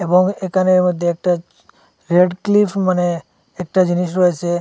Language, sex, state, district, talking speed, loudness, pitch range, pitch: Bengali, male, Assam, Hailakandi, 115 wpm, -17 LUFS, 175-185 Hz, 180 Hz